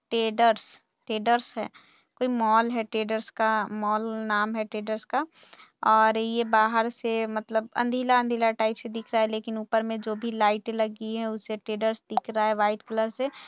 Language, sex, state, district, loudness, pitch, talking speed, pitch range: Hindi, female, Bihar, Purnia, -26 LUFS, 220 Hz, 180 wpm, 220-230 Hz